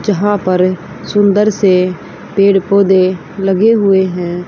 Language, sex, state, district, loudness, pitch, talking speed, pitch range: Hindi, female, Haryana, Rohtak, -12 LUFS, 195 Hz, 120 wpm, 185-205 Hz